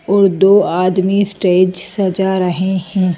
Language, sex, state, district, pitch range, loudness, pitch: Hindi, female, Madhya Pradesh, Bhopal, 185-195 Hz, -14 LUFS, 190 Hz